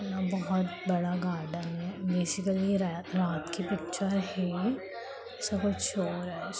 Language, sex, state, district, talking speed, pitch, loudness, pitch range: Hindi, female, Bihar, Lakhisarai, 155 wpm, 185 Hz, -32 LUFS, 175-195 Hz